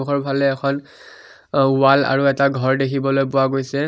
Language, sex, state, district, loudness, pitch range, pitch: Assamese, male, Assam, Kamrup Metropolitan, -18 LUFS, 135-140 Hz, 135 Hz